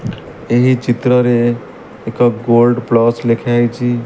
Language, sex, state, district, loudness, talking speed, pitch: Odia, male, Odisha, Malkangiri, -13 LUFS, 90 wpm, 120 Hz